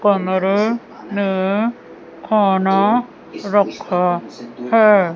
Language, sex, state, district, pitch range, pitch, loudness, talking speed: Hindi, female, Chandigarh, Chandigarh, 185-210 Hz, 200 Hz, -17 LUFS, 60 wpm